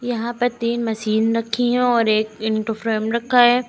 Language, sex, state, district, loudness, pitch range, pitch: Hindi, female, Uttar Pradesh, Lucknow, -20 LUFS, 220-245 Hz, 230 Hz